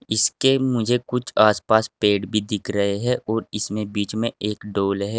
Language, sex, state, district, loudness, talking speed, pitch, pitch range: Hindi, male, Uttar Pradesh, Saharanpur, -21 LUFS, 195 wpm, 105 Hz, 105-115 Hz